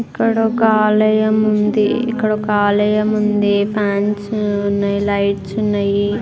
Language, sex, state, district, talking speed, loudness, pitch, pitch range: Telugu, female, Andhra Pradesh, Guntur, 95 wpm, -16 LUFS, 210 Hz, 205-215 Hz